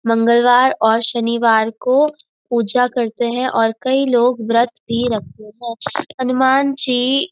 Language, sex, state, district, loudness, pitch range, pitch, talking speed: Hindi, female, Uttarakhand, Uttarkashi, -16 LUFS, 230-260 Hz, 240 Hz, 140 wpm